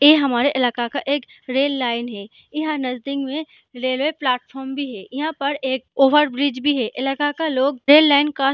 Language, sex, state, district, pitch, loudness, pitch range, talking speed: Hindi, female, Bihar, Jahanabad, 275 Hz, -20 LUFS, 255-290 Hz, 205 wpm